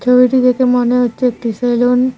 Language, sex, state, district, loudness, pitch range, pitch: Bengali, female, West Bengal, Cooch Behar, -13 LUFS, 245-250 Hz, 250 Hz